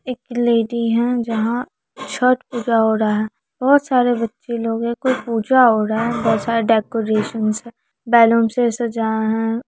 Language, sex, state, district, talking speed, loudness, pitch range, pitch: Hindi, female, Bihar, Araria, 180 wpm, -18 LUFS, 225-245 Hz, 235 Hz